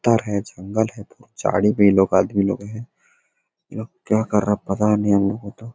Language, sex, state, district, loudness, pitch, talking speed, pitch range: Hindi, male, Jharkhand, Sahebganj, -20 LUFS, 105 Hz, 240 wpm, 100-110 Hz